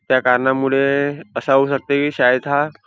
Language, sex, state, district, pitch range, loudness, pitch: Marathi, male, Maharashtra, Nagpur, 130-140 Hz, -17 LUFS, 135 Hz